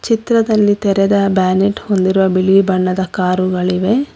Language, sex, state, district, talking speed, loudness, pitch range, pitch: Kannada, female, Karnataka, Bangalore, 100 wpm, -14 LUFS, 185-205 Hz, 195 Hz